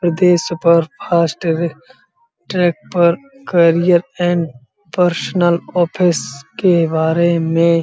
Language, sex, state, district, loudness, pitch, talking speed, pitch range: Hindi, male, Uttar Pradesh, Muzaffarnagar, -15 LUFS, 170 Hz, 75 wpm, 165-175 Hz